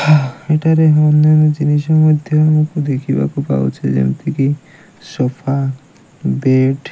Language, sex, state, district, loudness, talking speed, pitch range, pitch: Odia, male, Odisha, Malkangiri, -14 LUFS, 95 wpm, 130-155 Hz, 150 Hz